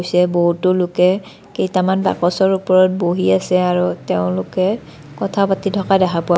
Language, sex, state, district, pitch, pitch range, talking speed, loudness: Assamese, female, Assam, Kamrup Metropolitan, 180 Hz, 170-190 Hz, 140 wpm, -17 LUFS